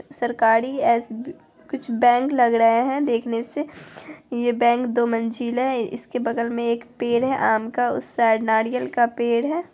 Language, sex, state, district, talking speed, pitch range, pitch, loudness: Hindi, female, Bihar, Araria, 180 wpm, 230-250 Hz, 240 Hz, -21 LUFS